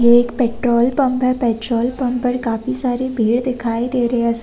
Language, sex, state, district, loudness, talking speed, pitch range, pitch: Hindi, female, Uttar Pradesh, Hamirpur, -17 LUFS, 205 wpm, 235-255 Hz, 245 Hz